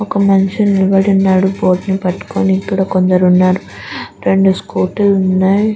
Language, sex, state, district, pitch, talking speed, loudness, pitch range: Telugu, female, Andhra Pradesh, Guntur, 190 Hz, 145 wpm, -13 LUFS, 185-195 Hz